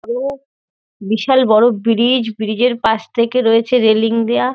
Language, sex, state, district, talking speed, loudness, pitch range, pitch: Bengali, female, West Bengal, North 24 Parganas, 160 wpm, -15 LUFS, 225-250 Hz, 230 Hz